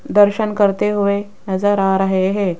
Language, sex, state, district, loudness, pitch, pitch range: Hindi, female, Rajasthan, Jaipur, -17 LUFS, 200 Hz, 195-205 Hz